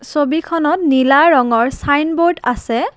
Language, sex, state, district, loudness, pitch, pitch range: Assamese, female, Assam, Kamrup Metropolitan, -14 LUFS, 285 Hz, 255-330 Hz